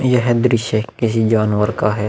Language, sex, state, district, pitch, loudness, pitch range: Hindi, male, Bihar, Vaishali, 110 Hz, -16 LUFS, 105-120 Hz